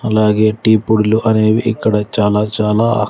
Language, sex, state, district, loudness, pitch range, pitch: Telugu, male, Andhra Pradesh, Sri Satya Sai, -14 LUFS, 105-110 Hz, 110 Hz